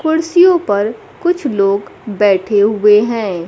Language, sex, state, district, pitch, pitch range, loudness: Hindi, female, Bihar, Kaimur, 210 Hz, 200-315 Hz, -13 LUFS